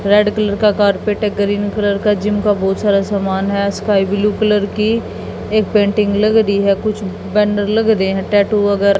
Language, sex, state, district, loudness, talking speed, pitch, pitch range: Hindi, female, Haryana, Jhajjar, -15 LUFS, 195 wpm, 205 Hz, 200-210 Hz